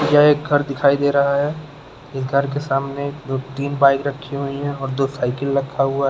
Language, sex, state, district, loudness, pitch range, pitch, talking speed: Hindi, male, Uttar Pradesh, Lucknow, -19 LUFS, 135-145 Hz, 140 Hz, 225 wpm